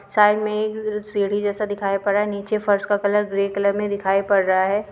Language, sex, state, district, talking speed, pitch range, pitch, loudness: Hindi, female, Uttarakhand, Uttarkashi, 245 wpm, 200-210 Hz, 205 Hz, -21 LUFS